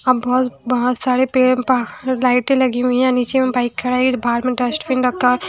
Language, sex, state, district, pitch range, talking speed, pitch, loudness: Hindi, female, Bihar, West Champaran, 250-255 Hz, 220 wpm, 250 Hz, -17 LUFS